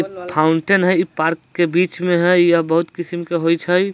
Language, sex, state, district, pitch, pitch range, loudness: Bajjika, male, Bihar, Vaishali, 175 Hz, 165-180 Hz, -17 LUFS